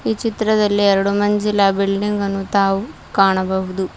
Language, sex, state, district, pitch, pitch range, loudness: Kannada, female, Karnataka, Bidar, 200 Hz, 195-210 Hz, -17 LUFS